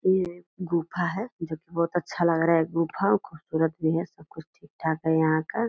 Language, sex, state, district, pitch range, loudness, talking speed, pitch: Hindi, female, Bihar, Purnia, 160-180 Hz, -26 LUFS, 200 wpm, 170 Hz